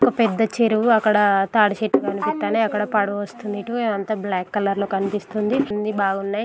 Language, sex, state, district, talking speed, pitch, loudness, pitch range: Telugu, female, Andhra Pradesh, Guntur, 160 wpm, 210 Hz, -21 LUFS, 200-220 Hz